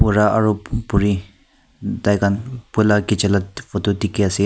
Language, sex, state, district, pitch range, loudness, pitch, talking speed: Nagamese, male, Nagaland, Kohima, 100-110 Hz, -19 LUFS, 100 Hz, 150 wpm